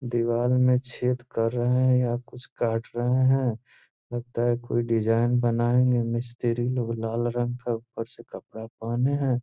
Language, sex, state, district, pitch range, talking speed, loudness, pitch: Hindi, male, Bihar, Gopalganj, 115-125 Hz, 160 wpm, -26 LUFS, 120 Hz